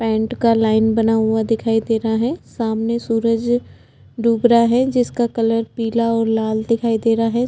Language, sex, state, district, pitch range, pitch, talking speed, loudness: Hindi, female, Chhattisgarh, Jashpur, 225-235 Hz, 230 Hz, 185 wpm, -18 LUFS